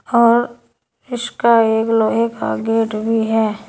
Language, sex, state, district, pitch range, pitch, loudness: Hindi, female, Uttar Pradesh, Saharanpur, 220-235 Hz, 225 Hz, -16 LUFS